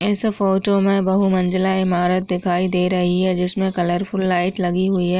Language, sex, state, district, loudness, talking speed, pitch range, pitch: Hindi, female, Uttar Pradesh, Deoria, -19 LUFS, 185 wpm, 180-195 Hz, 185 Hz